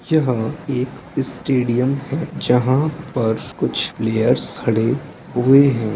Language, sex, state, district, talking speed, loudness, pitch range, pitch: Hindi, male, Uttar Pradesh, Etah, 110 wpm, -19 LUFS, 115-140 Hz, 125 Hz